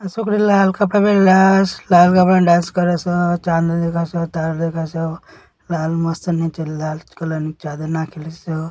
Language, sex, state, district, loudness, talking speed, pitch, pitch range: Gujarati, male, Gujarat, Gandhinagar, -17 LUFS, 130 wpm, 170 Hz, 160-185 Hz